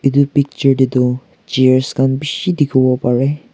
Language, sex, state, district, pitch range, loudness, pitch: Nagamese, male, Nagaland, Kohima, 130-140 Hz, -15 LUFS, 135 Hz